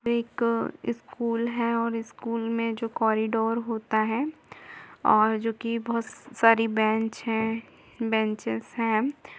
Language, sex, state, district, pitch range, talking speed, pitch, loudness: Hindi, female, Uttar Pradesh, Jalaun, 220-235 Hz, 120 wpm, 230 Hz, -27 LUFS